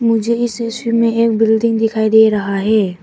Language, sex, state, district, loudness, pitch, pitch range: Hindi, female, Arunachal Pradesh, Papum Pare, -14 LUFS, 225 Hz, 220-230 Hz